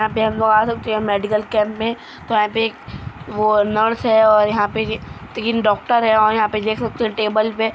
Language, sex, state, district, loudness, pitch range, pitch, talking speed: Hindi, male, Uttar Pradesh, Muzaffarnagar, -17 LUFS, 215-225 Hz, 220 Hz, 155 wpm